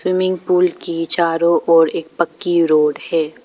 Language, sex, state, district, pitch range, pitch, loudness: Hindi, female, Arunachal Pradesh, Papum Pare, 165-180 Hz, 170 Hz, -16 LUFS